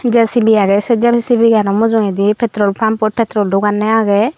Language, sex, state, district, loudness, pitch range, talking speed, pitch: Chakma, female, Tripura, Unakoti, -13 LUFS, 205-230 Hz, 165 wpm, 220 Hz